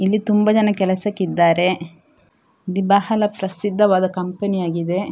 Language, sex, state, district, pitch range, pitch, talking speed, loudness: Kannada, female, Karnataka, Dakshina Kannada, 180-205 Hz, 190 Hz, 115 wpm, -18 LUFS